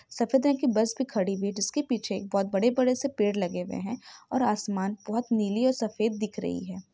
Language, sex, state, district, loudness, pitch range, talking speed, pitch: Hindi, female, Bihar, Jahanabad, -28 LUFS, 200-255 Hz, 250 wpm, 220 Hz